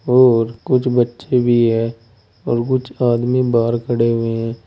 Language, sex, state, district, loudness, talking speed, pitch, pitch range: Hindi, male, Uttar Pradesh, Saharanpur, -17 LUFS, 155 wpm, 120 Hz, 115-125 Hz